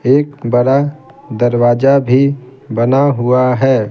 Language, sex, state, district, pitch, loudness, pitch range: Hindi, male, Bihar, Patna, 130 Hz, -13 LUFS, 120-140 Hz